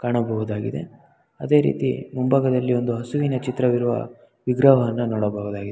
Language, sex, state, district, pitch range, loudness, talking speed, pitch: Kannada, male, Karnataka, Mysore, 110-125 Hz, -22 LUFS, 105 wpm, 120 Hz